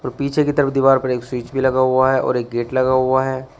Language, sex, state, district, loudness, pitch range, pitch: Hindi, male, Uttar Pradesh, Shamli, -18 LUFS, 125-135 Hz, 130 Hz